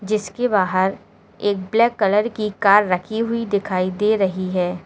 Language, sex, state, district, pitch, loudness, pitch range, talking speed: Hindi, female, Uttar Pradesh, Lalitpur, 200 Hz, -19 LUFS, 185-215 Hz, 160 wpm